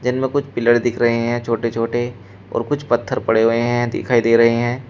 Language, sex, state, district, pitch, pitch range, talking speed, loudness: Hindi, male, Uttar Pradesh, Shamli, 120 Hz, 115-120 Hz, 220 wpm, -18 LUFS